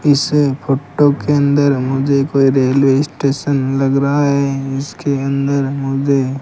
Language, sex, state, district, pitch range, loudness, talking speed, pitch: Hindi, male, Rajasthan, Bikaner, 135-145 Hz, -15 LUFS, 140 wpm, 140 Hz